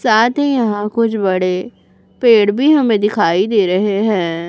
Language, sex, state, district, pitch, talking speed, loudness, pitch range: Hindi, female, Chhattisgarh, Raipur, 205 Hz, 160 wpm, -14 LUFS, 185-230 Hz